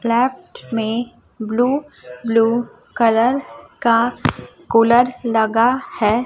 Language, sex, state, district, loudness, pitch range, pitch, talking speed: Hindi, male, Chhattisgarh, Raipur, -18 LUFS, 225-250 Hz, 235 Hz, 85 wpm